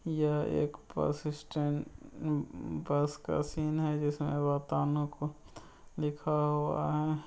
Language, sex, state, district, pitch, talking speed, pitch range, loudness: Hindi, male, Bihar, Muzaffarpur, 150 Hz, 105 wpm, 145-150 Hz, -33 LUFS